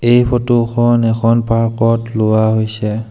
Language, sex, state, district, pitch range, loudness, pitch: Assamese, male, Assam, Sonitpur, 110-120 Hz, -14 LUFS, 115 Hz